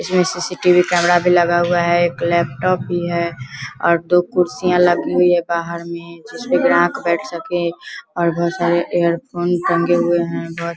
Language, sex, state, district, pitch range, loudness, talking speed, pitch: Hindi, female, Bihar, Vaishali, 170-175 Hz, -17 LUFS, 180 wpm, 175 Hz